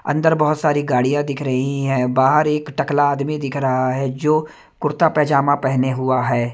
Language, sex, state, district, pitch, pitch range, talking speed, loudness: Hindi, male, Punjab, Kapurthala, 140 Hz, 130-150 Hz, 185 wpm, -18 LUFS